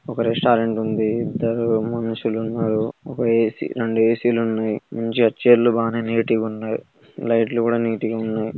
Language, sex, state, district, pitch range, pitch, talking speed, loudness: Telugu, male, Telangana, Nalgonda, 110-115 Hz, 115 Hz, 170 wpm, -21 LUFS